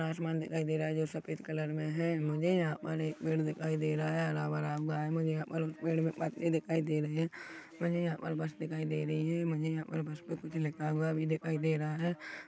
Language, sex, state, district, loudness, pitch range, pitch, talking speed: Hindi, male, Chhattisgarh, Rajnandgaon, -35 LUFS, 155-165 Hz, 160 Hz, 260 wpm